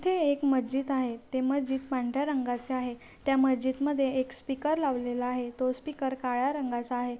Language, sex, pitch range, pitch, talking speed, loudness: Marathi, female, 250-275 Hz, 260 Hz, 175 wpm, -30 LUFS